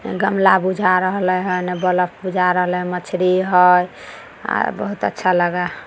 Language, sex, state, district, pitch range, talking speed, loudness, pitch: Maithili, female, Bihar, Samastipur, 180-185 Hz, 155 wpm, -17 LUFS, 185 Hz